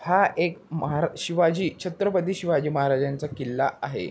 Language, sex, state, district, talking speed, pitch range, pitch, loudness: Marathi, male, Maharashtra, Pune, 130 wpm, 140-180 Hz, 165 Hz, -25 LUFS